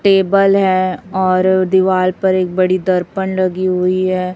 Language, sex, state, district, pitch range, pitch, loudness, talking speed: Hindi, female, Chhattisgarh, Raipur, 185-190 Hz, 185 Hz, -14 LUFS, 150 wpm